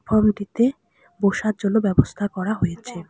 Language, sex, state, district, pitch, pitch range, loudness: Bengali, female, West Bengal, Alipurduar, 205 Hz, 190-215 Hz, -21 LUFS